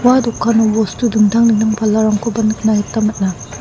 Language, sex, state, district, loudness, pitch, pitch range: Garo, female, Meghalaya, South Garo Hills, -14 LUFS, 220 Hz, 215-230 Hz